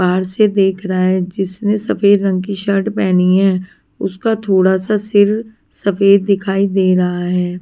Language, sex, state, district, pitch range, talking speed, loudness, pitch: Hindi, female, Maharashtra, Washim, 185-205 Hz, 165 wpm, -15 LUFS, 195 Hz